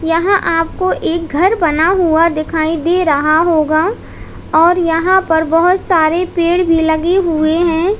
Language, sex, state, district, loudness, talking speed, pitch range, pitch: Hindi, female, Uttar Pradesh, Lalitpur, -13 LUFS, 150 wpm, 320-360 Hz, 330 Hz